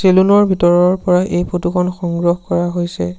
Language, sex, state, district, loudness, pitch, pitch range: Assamese, male, Assam, Sonitpur, -15 LUFS, 180 Hz, 175-185 Hz